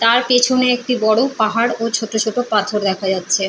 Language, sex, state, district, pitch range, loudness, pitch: Bengali, female, West Bengal, Purulia, 210-245 Hz, -16 LUFS, 225 Hz